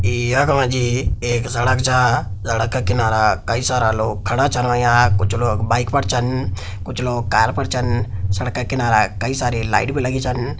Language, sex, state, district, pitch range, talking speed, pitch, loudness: Hindi, male, Uttarakhand, Tehri Garhwal, 110-125 Hz, 180 wpm, 120 Hz, -18 LUFS